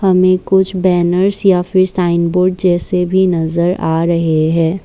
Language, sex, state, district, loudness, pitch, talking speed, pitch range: Hindi, female, Assam, Kamrup Metropolitan, -13 LUFS, 180 Hz, 150 wpm, 170-185 Hz